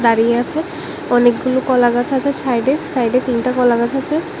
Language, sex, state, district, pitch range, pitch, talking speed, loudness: Bengali, female, Tripura, West Tripura, 240-275 Hz, 255 Hz, 165 wpm, -16 LUFS